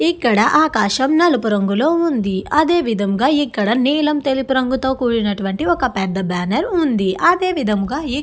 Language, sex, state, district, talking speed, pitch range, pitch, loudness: Telugu, female, Andhra Pradesh, Guntur, 145 wpm, 210-305 Hz, 260 Hz, -17 LUFS